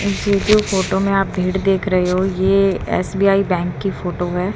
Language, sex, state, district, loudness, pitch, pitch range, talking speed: Hindi, female, Haryana, Rohtak, -17 LUFS, 190 Hz, 185-195 Hz, 195 wpm